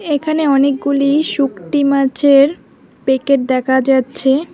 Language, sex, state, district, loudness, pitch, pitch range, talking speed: Bengali, female, West Bengal, Alipurduar, -14 LUFS, 275 Hz, 265-290 Hz, 95 wpm